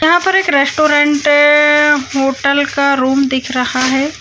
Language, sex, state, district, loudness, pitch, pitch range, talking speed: Hindi, female, Uttarakhand, Uttarkashi, -12 LUFS, 280 Hz, 270-295 Hz, 145 wpm